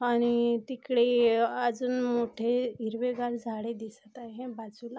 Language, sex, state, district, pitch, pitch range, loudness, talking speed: Marathi, female, Maharashtra, Aurangabad, 240 Hz, 230-245 Hz, -29 LUFS, 120 wpm